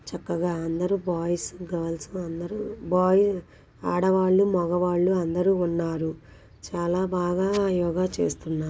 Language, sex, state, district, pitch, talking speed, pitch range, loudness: Telugu, female, Andhra Pradesh, Guntur, 175 Hz, 90 wpm, 165-185 Hz, -25 LUFS